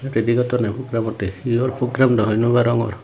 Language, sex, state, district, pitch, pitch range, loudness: Chakma, male, Tripura, Unakoti, 120 Hz, 115-125 Hz, -19 LUFS